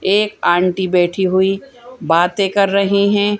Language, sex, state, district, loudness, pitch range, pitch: Hindi, female, Madhya Pradesh, Bhopal, -15 LUFS, 185-205 Hz, 195 Hz